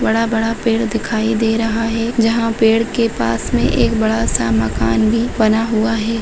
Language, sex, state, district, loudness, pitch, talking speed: Hindi, female, Maharashtra, Solapur, -16 LUFS, 225 Hz, 175 wpm